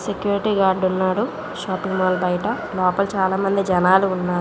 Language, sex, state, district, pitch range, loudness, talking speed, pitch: Telugu, female, Andhra Pradesh, Visakhapatnam, 185-200 Hz, -20 LUFS, 135 wpm, 190 Hz